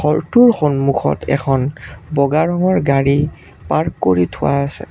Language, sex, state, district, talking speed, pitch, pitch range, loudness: Assamese, male, Assam, Kamrup Metropolitan, 120 wpm, 140 Hz, 135-155 Hz, -16 LUFS